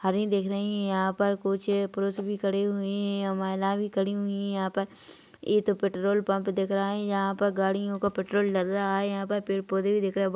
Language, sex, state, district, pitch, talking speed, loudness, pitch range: Hindi, female, Chhattisgarh, Bilaspur, 195 Hz, 250 wpm, -28 LUFS, 195-200 Hz